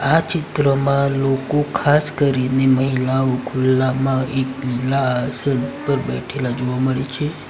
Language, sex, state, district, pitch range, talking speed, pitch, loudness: Gujarati, male, Gujarat, Valsad, 130-140 Hz, 120 wpm, 135 Hz, -19 LUFS